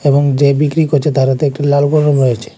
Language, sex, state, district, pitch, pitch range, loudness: Bengali, male, Tripura, West Tripura, 145 Hz, 140-150 Hz, -12 LUFS